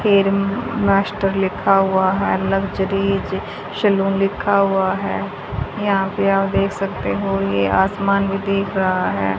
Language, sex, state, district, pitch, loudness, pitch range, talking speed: Hindi, female, Haryana, Rohtak, 195 Hz, -19 LUFS, 190-200 Hz, 145 wpm